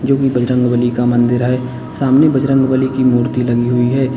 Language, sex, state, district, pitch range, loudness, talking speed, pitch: Hindi, male, Uttar Pradesh, Lalitpur, 120-135 Hz, -14 LUFS, 160 wpm, 125 Hz